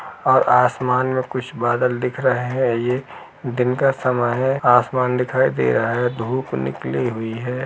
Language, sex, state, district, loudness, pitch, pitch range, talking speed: Hindi, male, Uttar Pradesh, Jalaun, -19 LUFS, 125 Hz, 120-130 Hz, 170 wpm